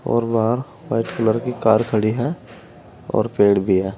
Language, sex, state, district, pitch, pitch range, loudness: Hindi, male, Uttar Pradesh, Saharanpur, 115 Hz, 110-120 Hz, -19 LUFS